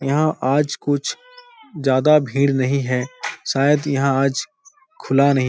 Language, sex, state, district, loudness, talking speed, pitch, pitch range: Hindi, male, Bihar, Supaul, -19 LUFS, 140 wpm, 140 Hz, 135-160 Hz